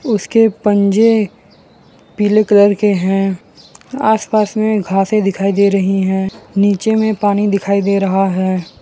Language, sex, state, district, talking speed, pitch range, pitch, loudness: Hindi, male, Gujarat, Valsad, 135 wpm, 195-215 Hz, 200 Hz, -14 LUFS